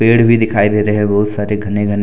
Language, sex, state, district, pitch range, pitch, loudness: Hindi, male, Jharkhand, Deoghar, 105-110 Hz, 105 Hz, -13 LUFS